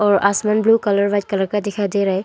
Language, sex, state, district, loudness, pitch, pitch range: Hindi, female, Arunachal Pradesh, Longding, -18 LUFS, 200 Hz, 200-205 Hz